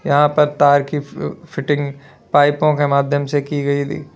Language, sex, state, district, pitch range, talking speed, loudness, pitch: Hindi, male, Uttar Pradesh, Lalitpur, 140-150 Hz, 185 wpm, -17 LUFS, 145 Hz